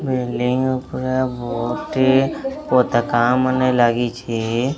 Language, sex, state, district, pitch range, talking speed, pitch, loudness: Odia, male, Odisha, Sambalpur, 120-130 Hz, 75 wpm, 125 Hz, -19 LUFS